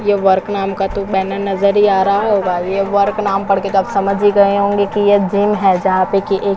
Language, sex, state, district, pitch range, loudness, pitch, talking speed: Hindi, female, Chhattisgarh, Korba, 195-200 Hz, -14 LUFS, 200 Hz, 300 wpm